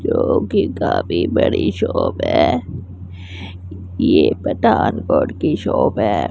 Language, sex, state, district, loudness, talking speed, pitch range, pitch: Hindi, female, Punjab, Pathankot, -17 LUFS, 105 wpm, 90-95 Hz, 90 Hz